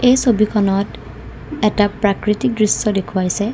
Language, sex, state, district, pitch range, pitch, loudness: Assamese, female, Assam, Kamrup Metropolitan, 200-220 Hz, 210 Hz, -17 LUFS